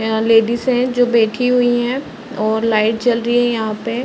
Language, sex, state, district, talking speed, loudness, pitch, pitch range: Hindi, female, Uttar Pradesh, Varanasi, 205 wpm, -16 LUFS, 235 Hz, 225-245 Hz